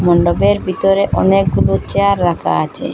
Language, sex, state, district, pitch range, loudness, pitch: Bengali, female, Assam, Hailakandi, 175-195 Hz, -14 LUFS, 195 Hz